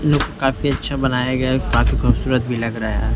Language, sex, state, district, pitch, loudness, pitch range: Hindi, male, Maharashtra, Mumbai Suburban, 130 Hz, -19 LUFS, 120-135 Hz